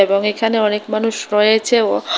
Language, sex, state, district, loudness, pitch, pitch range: Bengali, female, Tripura, West Tripura, -16 LUFS, 215 Hz, 210-225 Hz